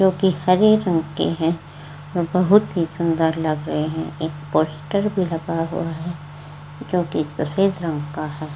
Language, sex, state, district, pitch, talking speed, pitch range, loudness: Hindi, female, Uttar Pradesh, Varanasi, 165 Hz, 175 wpm, 150-180 Hz, -21 LUFS